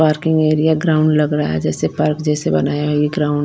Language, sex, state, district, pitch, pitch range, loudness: Hindi, female, Bihar, Patna, 150 Hz, 150-155 Hz, -16 LUFS